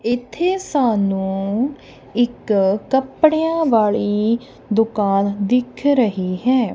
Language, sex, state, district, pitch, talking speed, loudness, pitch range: Punjabi, female, Punjab, Kapurthala, 230 Hz, 80 wpm, -18 LUFS, 205-265 Hz